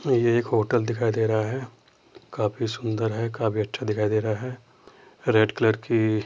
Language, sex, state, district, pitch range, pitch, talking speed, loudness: Hindi, male, Uttar Pradesh, Jyotiba Phule Nagar, 110-120 Hz, 110 Hz, 180 wpm, -25 LUFS